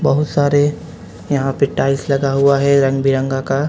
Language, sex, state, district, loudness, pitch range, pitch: Hindi, male, Jharkhand, Ranchi, -16 LUFS, 135-140 Hz, 140 Hz